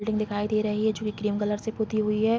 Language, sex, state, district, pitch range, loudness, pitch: Hindi, female, Bihar, Vaishali, 210-220 Hz, -27 LUFS, 215 Hz